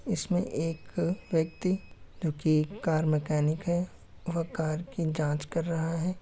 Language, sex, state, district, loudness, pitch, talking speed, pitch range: Hindi, male, Uttar Pradesh, Etah, -30 LUFS, 165 Hz, 135 wpm, 155-175 Hz